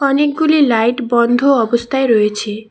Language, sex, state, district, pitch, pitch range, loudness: Bengali, female, West Bengal, Cooch Behar, 245 Hz, 225-275 Hz, -14 LUFS